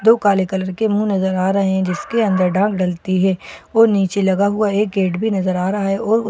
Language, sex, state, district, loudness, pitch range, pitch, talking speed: Hindi, female, Bihar, Katihar, -17 LUFS, 190-210 Hz, 195 Hz, 245 wpm